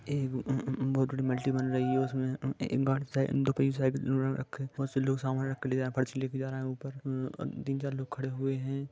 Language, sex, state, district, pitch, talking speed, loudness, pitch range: Hindi, male, Jharkhand, Sahebganj, 135 Hz, 170 wpm, -32 LUFS, 130-135 Hz